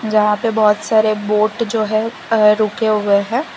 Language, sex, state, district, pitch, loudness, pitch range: Hindi, female, Gujarat, Valsad, 215 Hz, -15 LUFS, 210-225 Hz